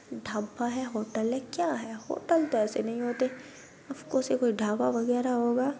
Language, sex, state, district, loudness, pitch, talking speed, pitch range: Hindi, female, Bihar, Gaya, -30 LUFS, 245 Hz, 175 wpm, 225-265 Hz